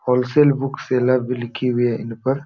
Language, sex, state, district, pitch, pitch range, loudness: Hindi, male, Uttar Pradesh, Jalaun, 125 Hz, 120-135 Hz, -19 LUFS